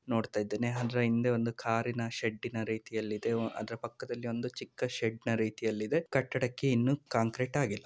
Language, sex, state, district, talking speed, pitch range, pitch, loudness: Kannada, male, Karnataka, Mysore, 160 wpm, 110-120 Hz, 115 Hz, -33 LUFS